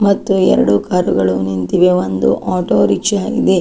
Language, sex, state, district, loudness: Kannada, female, Karnataka, Dakshina Kannada, -14 LUFS